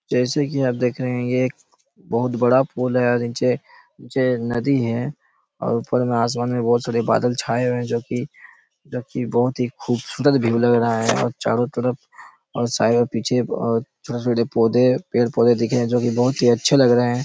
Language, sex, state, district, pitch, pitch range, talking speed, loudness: Hindi, male, Chhattisgarh, Raigarh, 120 Hz, 120-125 Hz, 205 wpm, -20 LUFS